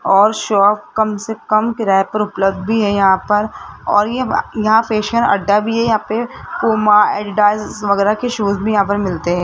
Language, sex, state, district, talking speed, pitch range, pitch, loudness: Hindi, female, Rajasthan, Jaipur, 195 wpm, 200-220 Hz, 210 Hz, -15 LUFS